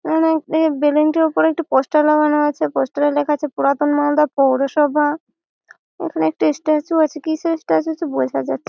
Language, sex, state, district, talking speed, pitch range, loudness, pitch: Bengali, female, West Bengal, Malda, 170 wpm, 275-315 Hz, -17 LUFS, 295 Hz